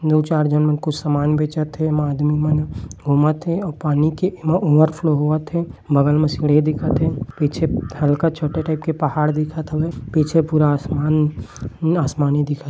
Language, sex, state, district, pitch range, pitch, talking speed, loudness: Chhattisgarhi, male, Chhattisgarh, Bilaspur, 150-155 Hz, 150 Hz, 185 wpm, -19 LUFS